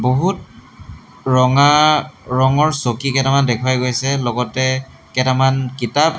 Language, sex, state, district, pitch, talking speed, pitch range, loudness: Assamese, male, Assam, Hailakandi, 130 Hz, 95 wpm, 125-140 Hz, -16 LUFS